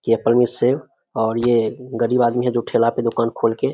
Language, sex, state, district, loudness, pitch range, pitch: Hindi, male, Bihar, Samastipur, -19 LUFS, 115-120 Hz, 115 Hz